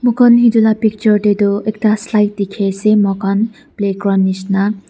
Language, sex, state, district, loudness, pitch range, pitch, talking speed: Nagamese, female, Nagaland, Dimapur, -14 LUFS, 200-220 Hz, 210 Hz, 185 wpm